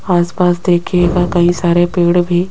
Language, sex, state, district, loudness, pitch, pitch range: Hindi, female, Rajasthan, Jaipur, -13 LUFS, 175 Hz, 175-180 Hz